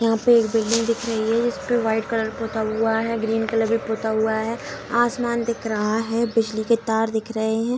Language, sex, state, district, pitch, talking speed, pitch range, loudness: Hindi, female, Bihar, Samastipur, 225 Hz, 225 wpm, 220-230 Hz, -22 LUFS